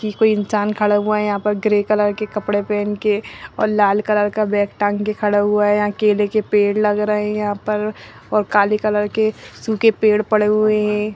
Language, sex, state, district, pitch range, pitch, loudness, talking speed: Hindi, female, Uttarakhand, Uttarkashi, 205-215 Hz, 210 Hz, -18 LUFS, 220 wpm